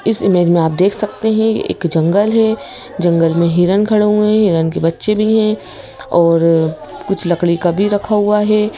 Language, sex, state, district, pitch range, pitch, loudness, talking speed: Hindi, female, Madhya Pradesh, Bhopal, 170-215 Hz, 200 Hz, -14 LUFS, 190 wpm